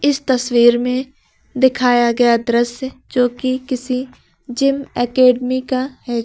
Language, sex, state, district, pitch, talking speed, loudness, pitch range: Hindi, female, Uttar Pradesh, Lucknow, 255 Hz, 135 wpm, -16 LUFS, 245-260 Hz